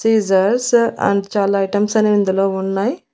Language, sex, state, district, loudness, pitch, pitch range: Telugu, female, Andhra Pradesh, Annamaya, -16 LUFS, 200 Hz, 195-220 Hz